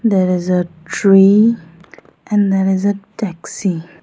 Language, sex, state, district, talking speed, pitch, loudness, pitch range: English, female, Arunachal Pradesh, Lower Dibang Valley, 135 wpm, 190 Hz, -15 LUFS, 175-205 Hz